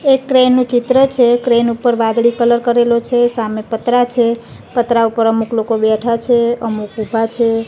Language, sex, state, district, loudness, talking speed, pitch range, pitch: Gujarati, female, Gujarat, Gandhinagar, -14 LUFS, 180 wpm, 225-245 Hz, 235 Hz